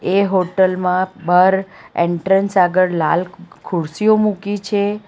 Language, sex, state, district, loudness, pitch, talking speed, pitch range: Gujarati, female, Gujarat, Valsad, -17 LUFS, 190 Hz, 120 wpm, 180-200 Hz